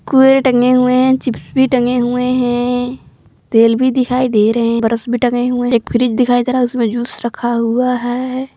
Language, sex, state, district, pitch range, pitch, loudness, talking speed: Hindi, female, Jharkhand, Palamu, 240-255 Hz, 245 Hz, -14 LUFS, 225 wpm